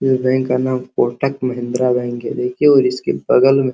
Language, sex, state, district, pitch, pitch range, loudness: Hindi, male, Uttar Pradesh, Hamirpur, 130 Hz, 125-130 Hz, -16 LUFS